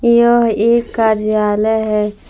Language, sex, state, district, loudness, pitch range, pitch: Hindi, female, Jharkhand, Palamu, -14 LUFS, 215-235 Hz, 220 Hz